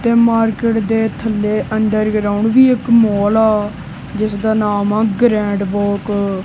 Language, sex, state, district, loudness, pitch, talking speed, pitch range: Punjabi, female, Punjab, Kapurthala, -15 LUFS, 215 Hz, 130 wpm, 205-225 Hz